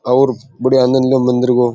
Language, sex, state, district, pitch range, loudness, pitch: Rajasthani, male, Rajasthan, Churu, 125-130 Hz, -14 LUFS, 130 Hz